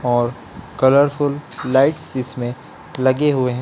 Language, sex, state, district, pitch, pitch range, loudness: Hindi, male, Chhattisgarh, Raipur, 130 Hz, 125-145 Hz, -18 LUFS